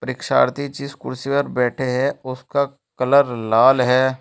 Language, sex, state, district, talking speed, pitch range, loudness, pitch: Hindi, male, Uttar Pradesh, Shamli, 140 wpm, 125-140 Hz, -19 LUFS, 130 Hz